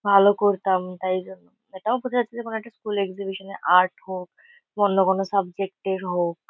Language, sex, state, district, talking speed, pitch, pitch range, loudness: Bengali, female, West Bengal, Kolkata, 175 wpm, 195 Hz, 185-210 Hz, -24 LUFS